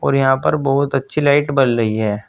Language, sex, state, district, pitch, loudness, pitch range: Hindi, male, Uttar Pradesh, Saharanpur, 135 Hz, -16 LUFS, 115-140 Hz